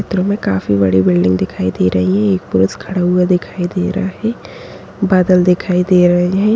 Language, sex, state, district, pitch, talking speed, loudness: Kumaoni, female, Uttarakhand, Tehri Garhwal, 180 Hz, 200 wpm, -14 LUFS